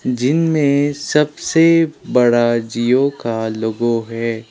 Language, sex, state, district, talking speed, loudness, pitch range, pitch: Hindi, male, Sikkim, Gangtok, 95 wpm, -16 LUFS, 115-145 Hz, 125 Hz